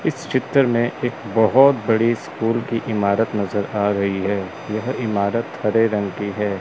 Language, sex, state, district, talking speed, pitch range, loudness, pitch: Hindi, male, Chandigarh, Chandigarh, 170 wpm, 100-115 Hz, -20 LUFS, 110 Hz